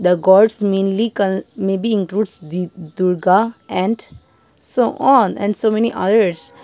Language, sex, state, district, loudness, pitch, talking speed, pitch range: English, female, Nagaland, Dimapur, -17 LUFS, 195 Hz, 145 wpm, 185-220 Hz